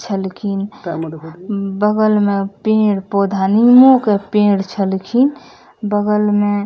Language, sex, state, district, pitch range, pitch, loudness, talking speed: Maithili, female, Bihar, Madhepura, 195-210 Hz, 205 Hz, -15 LUFS, 125 wpm